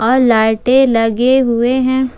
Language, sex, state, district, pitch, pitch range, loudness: Hindi, female, Jharkhand, Ranchi, 250 Hz, 230-260 Hz, -12 LUFS